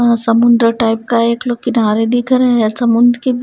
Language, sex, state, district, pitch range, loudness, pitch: Hindi, female, Punjab, Kapurthala, 230-245 Hz, -13 LUFS, 235 Hz